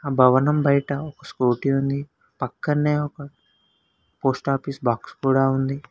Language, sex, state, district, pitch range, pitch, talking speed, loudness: Telugu, male, Telangana, Hyderabad, 135-145 Hz, 140 Hz, 120 wpm, -22 LUFS